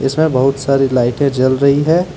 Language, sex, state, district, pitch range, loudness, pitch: Hindi, male, Jharkhand, Deoghar, 130-145 Hz, -14 LUFS, 135 Hz